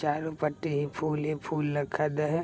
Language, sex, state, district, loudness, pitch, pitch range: Maithili, male, Bihar, Begusarai, -30 LUFS, 150 Hz, 150-155 Hz